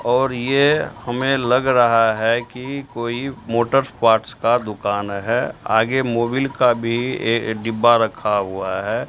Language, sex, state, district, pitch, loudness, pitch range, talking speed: Hindi, male, Bihar, Katihar, 120 Hz, -19 LUFS, 110-130 Hz, 140 wpm